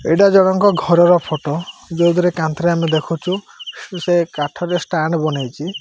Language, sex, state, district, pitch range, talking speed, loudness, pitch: Odia, male, Odisha, Malkangiri, 155-180 Hz, 145 wpm, -16 LUFS, 170 Hz